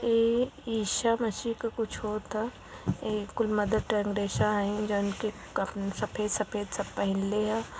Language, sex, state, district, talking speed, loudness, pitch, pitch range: Bhojpuri, female, Uttar Pradesh, Varanasi, 140 wpm, -30 LUFS, 210 Hz, 205-225 Hz